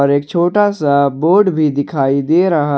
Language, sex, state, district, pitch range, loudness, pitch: Hindi, male, Jharkhand, Ranchi, 140-175 Hz, -14 LUFS, 150 Hz